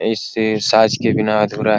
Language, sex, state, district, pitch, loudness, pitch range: Hindi, male, Bihar, Araria, 110 Hz, -16 LUFS, 105-110 Hz